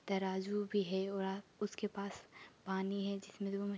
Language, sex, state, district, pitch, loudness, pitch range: Hindi, female, Uttar Pradesh, Etah, 200 Hz, -40 LUFS, 190-200 Hz